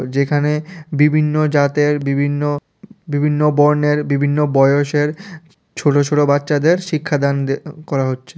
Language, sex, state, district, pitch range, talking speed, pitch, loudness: Bengali, female, Tripura, West Tripura, 145-150 Hz, 100 wpm, 145 Hz, -16 LUFS